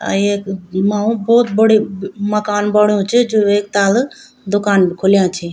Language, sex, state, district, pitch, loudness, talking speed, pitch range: Garhwali, female, Uttarakhand, Tehri Garhwal, 205 Hz, -15 LUFS, 195 wpm, 195-215 Hz